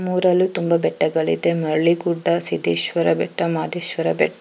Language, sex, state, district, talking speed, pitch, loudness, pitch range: Kannada, female, Karnataka, Chamarajanagar, 135 wpm, 170 Hz, -18 LUFS, 155-175 Hz